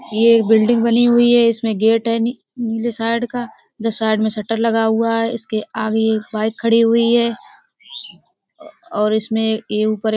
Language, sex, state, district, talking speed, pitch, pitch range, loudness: Hindi, female, Uttar Pradesh, Budaun, 190 wpm, 225 Hz, 220-235 Hz, -17 LUFS